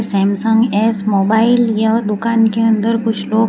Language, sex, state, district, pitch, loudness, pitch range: Hindi, female, Gujarat, Valsad, 220 Hz, -14 LUFS, 215-225 Hz